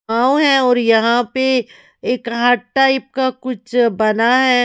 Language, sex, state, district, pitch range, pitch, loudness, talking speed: Hindi, female, Maharashtra, Mumbai Suburban, 235-260 Hz, 245 Hz, -15 LUFS, 155 wpm